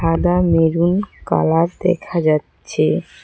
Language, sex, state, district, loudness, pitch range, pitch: Bengali, female, West Bengal, Cooch Behar, -17 LUFS, 165-180 Hz, 170 Hz